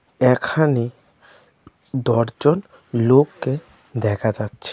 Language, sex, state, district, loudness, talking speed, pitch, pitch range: Bengali, male, Tripura, West Tripura, -20 LUFS, 65 wpm, 125 Hz, 115-145 Hz